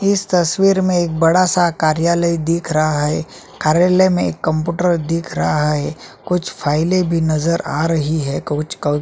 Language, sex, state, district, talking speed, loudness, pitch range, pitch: Hindi, male, Chhattisgarh, Sukma, 165 wpm, -17 LUFS, 155-180 Hz, 165 Hz